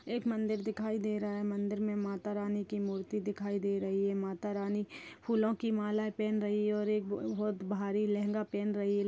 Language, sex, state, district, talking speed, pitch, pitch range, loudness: Kumaoni, female, Uttarakhand, Uttarkashi, 220 wpm, 205 Hz, 200-215 Hz, -35 LUFS